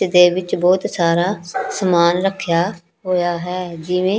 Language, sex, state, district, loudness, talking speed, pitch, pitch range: Punjabi, female, Punjab, Pathankot, -18 LUFS, 130 wpm, 180 Hz, 170-185 Hz